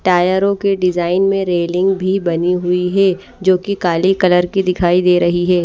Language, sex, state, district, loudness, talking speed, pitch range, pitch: Hindi, female, Odisha, Malkangiri, -15 LUFS, 190 wpm, 175-190 Hz, 180 Hz